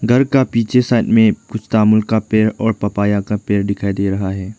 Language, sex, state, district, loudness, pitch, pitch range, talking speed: Hindi, male, Arunachal Pradesh, Lower Dibang Valley, -16 LUFS, 110 Hz, 100-115 Hz, 210 wpm